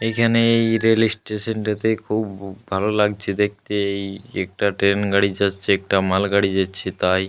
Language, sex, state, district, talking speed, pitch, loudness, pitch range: Bengali, male, Jharkhand, Jamtara, 155 wpm, 100 Hz, -20 LUFS, 100-110 Hz